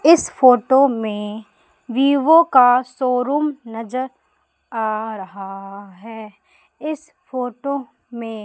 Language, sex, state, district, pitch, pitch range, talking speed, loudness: Hindi, female, Madhya Pradesh, Umaria, 245 Hz, 220-275 Hz, 90 wpm, -18 LUFS